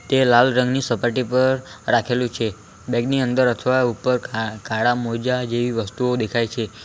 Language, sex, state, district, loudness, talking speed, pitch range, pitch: Gujarati, male, Gujarat, Valsad, -20 LUFS, 165 wpm, 115-125 Hz, 120 Hz